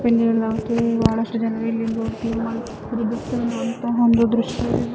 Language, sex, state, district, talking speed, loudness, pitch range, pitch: Kannada, female, Karnataka, Chamarajanagar, 95 wpm, -21 LUFS, 225-235 Hz, 230 Hz